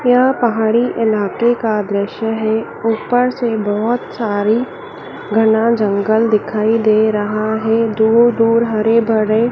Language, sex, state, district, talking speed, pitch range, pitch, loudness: Hindi, female, Madhya Pradesh, Dhar, 125 wpm, 215-230 Hz, 220 Hz, -15 LUFS